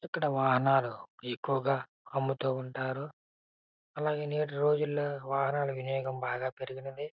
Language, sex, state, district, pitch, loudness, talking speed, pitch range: Telugu, male, Andhra Pradesh, Srikakulam, 135 Hz, -32 LUFS, 100 wpm, 130-145 Hz